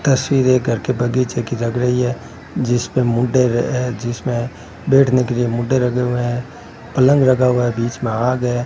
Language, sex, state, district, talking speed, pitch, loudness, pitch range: Hindi, male, Rajasthan, Bikaner, 195 wpm, 125 Hz, -17 LUFS, 120-130 Hz